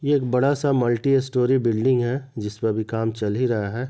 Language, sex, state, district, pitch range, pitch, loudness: Hindi, male, Bihar, Madhepura, 110-130 Hz, 125 Hz, -22 LUFS